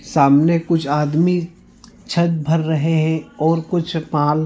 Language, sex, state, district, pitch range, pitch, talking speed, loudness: Hindi, male, Goa, North and South Goa, 155-170 Hz, 160 Hz, 135 wpm, -18 LUFS